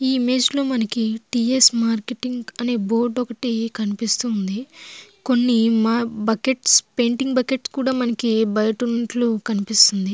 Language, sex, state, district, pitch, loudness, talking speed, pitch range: Telugu, female, Andhra Pradesh, Guntur, 235 Hz, -19 LUFS, 110 wpm, 225-250 Hz